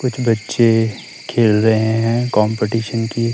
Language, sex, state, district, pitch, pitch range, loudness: Hindi, male, Himachal Pradesh, Shimla, 115 Hz, 110-115 Hz, -16 LUFS